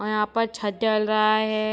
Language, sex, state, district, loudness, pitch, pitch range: Hindi, female, Jharkhand, Sahebganj, -23 LUFS, 215 Hz, 215-220 Hz